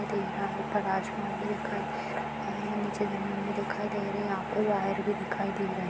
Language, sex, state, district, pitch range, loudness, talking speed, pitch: Hindi, female, Chhattisgarh, Raigarh, 200-210 Hz, -32 LUFS, 215 wpm, 205 Hz